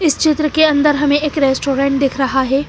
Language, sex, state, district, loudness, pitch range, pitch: Hindi, female, Madhya Pradesh, Bhopal, -14 LUFS, 275-305 Hz, 285 Hz